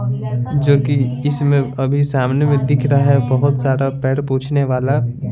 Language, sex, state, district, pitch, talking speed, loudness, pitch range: Hindi, male, Bihar, Patna, 135 Hz, 160 wpm, -16 LUFS, 130-140 Hz